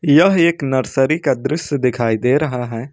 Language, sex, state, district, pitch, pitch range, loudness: Hindi, male, Jharkhand, Ranchi, 135 Hz, 125-155 Hz, -16 LUFS